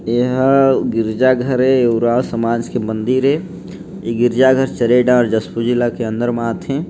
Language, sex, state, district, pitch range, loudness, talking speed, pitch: Chhattisgarhi, male, Chhattisgarh, Jashpur, 115-130 Hz, -15 LUFS, 180 wpm, 120 Hz